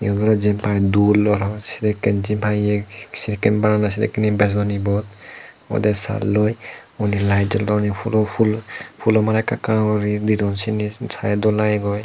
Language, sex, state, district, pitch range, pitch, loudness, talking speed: Chakma, male, Tripura, Dhalai, 100-110 Hz, 105 Hz, -19 LUFS, 165 wpm